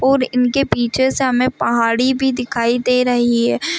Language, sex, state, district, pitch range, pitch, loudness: Hindi, female, Chhattisgarh, Rajnandgaon, 240-260 Hz, 250 Hz, -16 LUFS